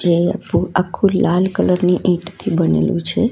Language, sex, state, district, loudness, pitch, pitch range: Gujarati, female, Gujarat, Valsad, -17 LUFS, 180 Hz, 170-190 Hz